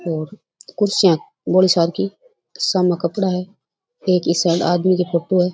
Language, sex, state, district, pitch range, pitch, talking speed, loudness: Rajasthani, female, Rajasthan, Churu, 170-185 Hz, 180 Hz, 160 wpm, -18 LUFS